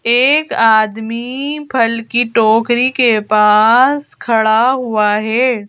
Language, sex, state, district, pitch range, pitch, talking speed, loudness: Hindi, female, Madhya Pradesh, Bhopal, 220-255 Hz, 230 Hz, 105 wpm, -13 LUFS